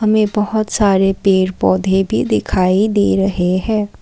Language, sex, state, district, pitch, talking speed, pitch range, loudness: Hindi, female, Assam, Kamrup Metropolitan, 200 Hz, 150 wpm, 190-215 Hz, -15 LUFS